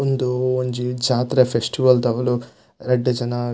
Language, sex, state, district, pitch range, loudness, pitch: Tulu, male, Karnataka, Dakshina Kannada, 120-130 Hz, -20 LUFS, 125 Hz